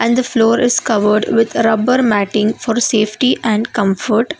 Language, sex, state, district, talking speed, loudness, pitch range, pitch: English, female, Karnataka, Bangalore, 150 wpm, -14 LUFS, 215-240 Hz, 225 Hz